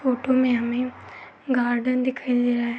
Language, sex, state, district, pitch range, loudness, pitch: Hindi, female, Uttar Pradesh, Gorakhpur, 245-255 Hz, -23 LUFS, 250 Hz